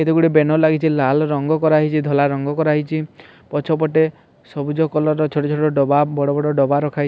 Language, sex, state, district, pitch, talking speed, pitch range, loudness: Odia, male, Odisha, Sambalpur, 150 Hz, 220 wpm, 145-155 Hz, -17 LUFS